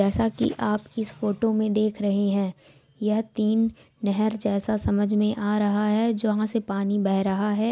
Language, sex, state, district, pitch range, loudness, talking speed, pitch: Hindi, female, Jharkhand, Sahebganj, 200-220 Hz, -24 LUFS, 185 wpm, 210 Hz